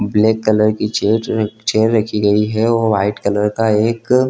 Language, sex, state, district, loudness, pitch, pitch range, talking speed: Hindi, male, Jharkhand, Jamtara, -15 LUFS, 110 Hz, 105-110 Hz, 195 wpm